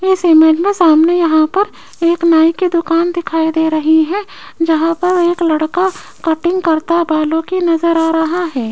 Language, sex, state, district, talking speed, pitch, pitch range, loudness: Hindi, female, Rajasthan, Jaipur, 180 wpm, 335 Hz, 320-355 Hz, -13 LUFS